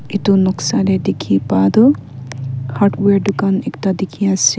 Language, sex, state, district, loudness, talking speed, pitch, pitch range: Nagamese, female, Nagaland, Kohima, -15 LUFS, 145 wpm, 190 Hz, 130-200 Hz